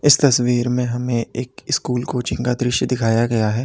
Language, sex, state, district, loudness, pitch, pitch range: Hindi, male, Uttar Pradesh, Lalitpur, -19 LUFS, 125 Hz, 120-125 Hz